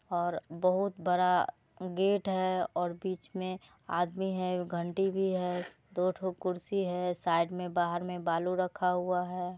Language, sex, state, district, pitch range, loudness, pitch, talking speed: Hindi, female, Bihar, Muzaffarpur, 175-185 Hz, -32 LUFS, 180 Hz, 150 wpm